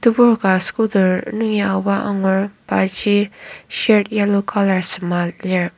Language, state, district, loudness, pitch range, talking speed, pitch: Ao, Nagaland, Kohima, -17 LUFS, 185-210 Hz, 125 wpm, 200 Hz